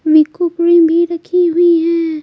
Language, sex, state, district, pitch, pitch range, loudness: Hindi, female, Bihar, Patna, 335 Hz, 325-345 Hz, -12 LUFS